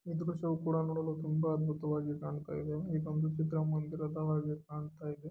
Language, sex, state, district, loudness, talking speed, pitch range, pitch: Kannada, male, Karnataka, Dharwad, -36 LUFS, 135 wpm, 150-160 Hz, 155 Hz